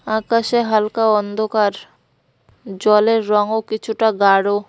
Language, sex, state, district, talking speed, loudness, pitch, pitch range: Bengali, female, West Bengal, Cooch Behar, 90 wpm, -17 LUFS, 215 Hz, 210-220 Hz